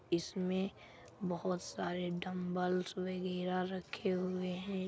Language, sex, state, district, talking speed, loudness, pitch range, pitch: Hindi, male, Bihar, Madhepura, 100 wpm, -38 LUFS, 180-185 Hz, 185 Hz